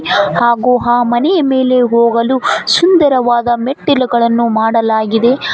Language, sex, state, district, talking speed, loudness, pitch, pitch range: Kannada, female, Karnataka, Koppal, 85 wpm, -11 LUFS, 240 Hz, 235-260 Hz